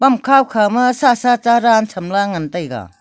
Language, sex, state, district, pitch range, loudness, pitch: Wancho, female, Arunachal Pradesh, Longding, 185-250 Hz, -14 LUFS, 230 Hz